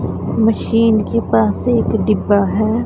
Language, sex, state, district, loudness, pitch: Hindi, female, Punjab, Pathankot, -15 LUFS, 210 Hz